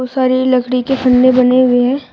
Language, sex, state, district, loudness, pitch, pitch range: Hindi, female, Uttar Pradesh, Shamli, -12 LUFS, 255 Hz, 250-260 Hz